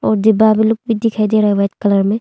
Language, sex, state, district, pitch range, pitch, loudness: Hindi, female, Arunachal Pradesh, Longding, 205-220 Hz, 215 Hz, -14 LUFS